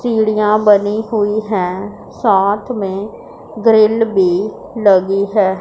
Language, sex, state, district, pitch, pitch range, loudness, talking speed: Hindi, female, Punjab, Pathankot, 205 Hz, 195-220 Hz, -14 LUFS, 105 wpm